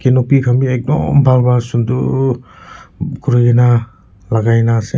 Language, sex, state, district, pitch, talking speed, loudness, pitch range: Nagamese, male, Nagaland, Kohima, 125 Hz, 120 wpm, -13 LUFS, 115-130 Hz